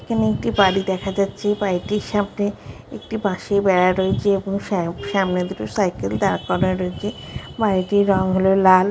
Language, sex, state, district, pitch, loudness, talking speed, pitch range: Bengali, female, West Bengal, Jhargram, 190 Hz, -20 LUFS, 155 wpm, 185-200 Hz